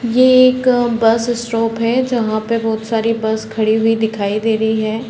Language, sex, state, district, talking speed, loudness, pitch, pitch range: Hindi, female, Chhattisgarh, Raigarh, 200 wpm, -15 LUFS, 225 Hz, 220-240 Hz